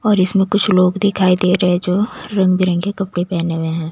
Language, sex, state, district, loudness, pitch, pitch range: Hindi, female, Maharashtra, Mumbai Suburban, -16 LUFS, 185 Hz, 180-195 Hz